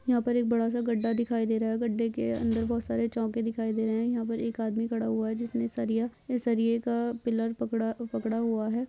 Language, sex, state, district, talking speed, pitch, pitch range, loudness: Hindi, female, Chhattisgarh, Bastar, 250 wpm, 230 Hz, 225-235 Hz, -29 LUFS